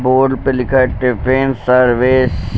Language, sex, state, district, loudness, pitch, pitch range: Hindi, male, Uttar Pradesh, Lucknow, -13 LUFS, 130 Hz, 125-130 Hz